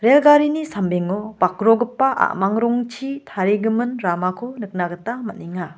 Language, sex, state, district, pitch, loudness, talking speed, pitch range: Garo, female, Meghalaya, West Garo Hills, 220 Hz, -20 LUFS, 115 wpm, 185-245 Hz